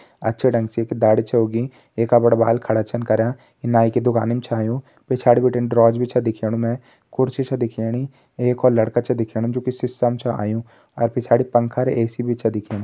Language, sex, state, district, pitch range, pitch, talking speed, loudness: Hindi, male, Uttarakhand, Tehri Garhwal, 115-125 Hz, 120 Hz, 220 wpm, -20 LUFS